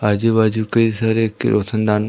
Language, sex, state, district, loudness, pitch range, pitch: Hindi, female, Madhya Pradesh, Umaria, -17 LUFS, 105-115 Hz, 110 Hz